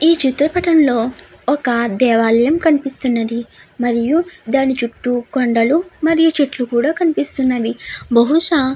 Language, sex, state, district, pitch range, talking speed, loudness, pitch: Telugu, female, Andhra Pradesh, Chittoor, 235-315 Hz, 115 wpm, -16 LUFS, 265 Hz